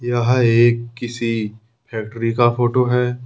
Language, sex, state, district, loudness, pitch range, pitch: Hindi, male, Jharkhand, Ranchi, -18 LUFS, 115-120 Hz, 120 Hz